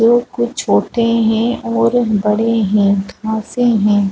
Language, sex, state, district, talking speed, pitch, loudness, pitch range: Hindi, female, Chhattisgarh, Balrampur, 130 wpm, 220 Hz, -15 LUFS, 205-230 Hz